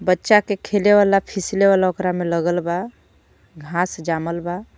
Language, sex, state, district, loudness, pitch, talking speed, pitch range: Bhojpuri, female, Jharkhand, Palamu, -19 LUFS, 185 Hz, 165 wpm, 175-200 Hz